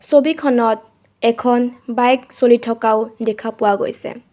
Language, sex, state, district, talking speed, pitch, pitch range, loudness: Assamese, female, Assam, Kamrup Metropolitan, 110 wpm, 235 Hz, 225-250 Hz, -17 LUFS